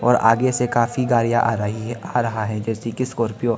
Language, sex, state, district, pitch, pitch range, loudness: Hindi, male, Arunachal Pradesh, Lower Dibang Valley, 115 Hz, 115-125 Hz, -20 LUFS